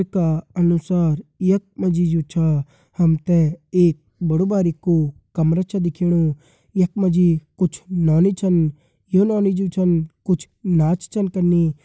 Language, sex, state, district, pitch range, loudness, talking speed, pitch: Garhwali, male, Uttarakhand, Tehri Garhwal, 160-185 Hz, -19 LUFS, 150 wpm, 175 Hz